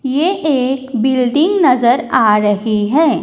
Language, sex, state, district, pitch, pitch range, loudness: Hindi, female, Punjab, Kapurthala, 260 Hz, 230-305 Hz, -13 LUFS